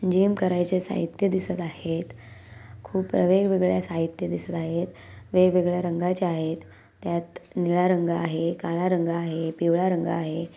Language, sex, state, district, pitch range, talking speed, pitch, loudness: Marathi, female, Maharashtra, Nagpur, 165-180 Hz, 130 wpm, 170 Hz, -25 LUFS